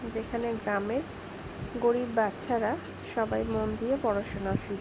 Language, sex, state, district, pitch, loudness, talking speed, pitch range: Bengali, female, West Bengal, Jhargram, 220 Hz, -31 LUFS, 110 wpm, 195-235 Hz